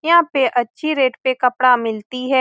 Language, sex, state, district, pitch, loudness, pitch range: Hindi, female, Bihar, Saran, 255 Hz, -17 LUFS, 245-275 Hz